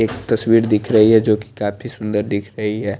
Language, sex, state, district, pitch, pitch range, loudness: Hindi, male, Chandigarh, Chandigarh, 110 Hz, 105-115 Hz, -17 LUFS